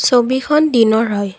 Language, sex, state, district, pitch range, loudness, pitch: Assamese, female, Assam, Kamrup Metropolitan, 220-265 Hz, -14 LUFS, 240 Hz